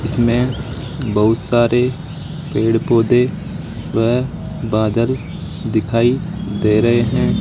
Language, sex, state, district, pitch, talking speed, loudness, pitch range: Hindi, male, Rajasthan, Jaipur, 120 Hz, 90 wpm, -17 LUFS, 115-135 Hz